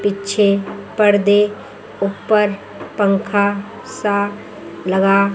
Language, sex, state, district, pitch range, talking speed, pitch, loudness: Hindi, female, Chandigarh, Chandigarh, 200-205 Hz, 65 wpm, 205 Hz, -17 LUFS